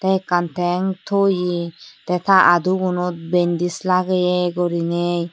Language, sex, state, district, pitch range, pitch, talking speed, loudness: Chakma, female, Tripura, Unakoti, 175-185 Hz, 180 Hz, 110 wpm, -19 LUFS